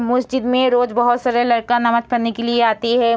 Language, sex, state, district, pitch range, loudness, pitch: Hindi, female, Bihar, Sitamarhi, 235-245 Hz, -17 LUFS, 240 Hz